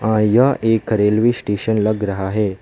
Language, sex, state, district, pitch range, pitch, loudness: Hindi, male, West Bengal, Alipurduar, 105-115 Hz, 110 Hz, -17 LUFS